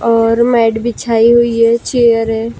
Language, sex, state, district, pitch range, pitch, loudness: Hindi, female, Maharashtra, Gondia, 225-235 Hz, 230 Hz, -11 LUFS